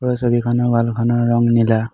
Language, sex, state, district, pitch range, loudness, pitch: Assamese, male, Assam, Hailakandi, 115-120 Hz, -16 LUFS, 120 Hz